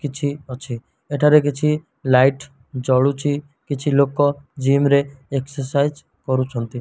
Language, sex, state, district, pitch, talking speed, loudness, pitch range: Odia, male, Odisha, Malkangiri, 140 Hz, 105 wpm, -19 LUFS, 130-145 Hz